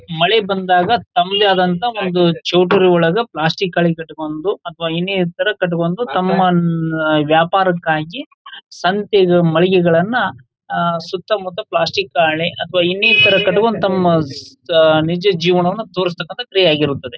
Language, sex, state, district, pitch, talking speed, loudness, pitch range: Kannada, male, Karnataka, Bijapur, 180 Hz, 110 wpm, -15 LUFS, 165-195 Hz